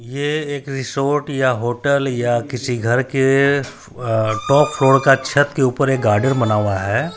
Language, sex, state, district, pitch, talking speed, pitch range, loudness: Hindi, male, Bihar, Supaul, 135 Hz, 175 wpm, 120-140 Hz, -17 LUFS